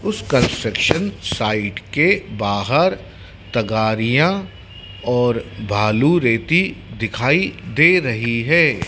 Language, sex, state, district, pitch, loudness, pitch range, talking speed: Hindi, male, Madhya Pradesh, Dhar, 115 Hz, -18 LUFS, 100-155 Hz, 90 wpm